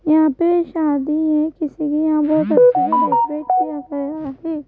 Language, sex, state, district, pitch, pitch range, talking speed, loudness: Hindi, female, Madhya Pradesh, Bhopal, 310 Hz, 295-320 Hz, 180 wpm, -17 LUFS